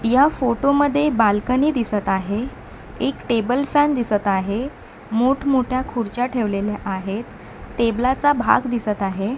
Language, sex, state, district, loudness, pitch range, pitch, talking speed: Marathi, female, Maharashtra, Mumbai Suburban, -20 LUFS, 210-265 Hz, 240 Hz, 130 wpm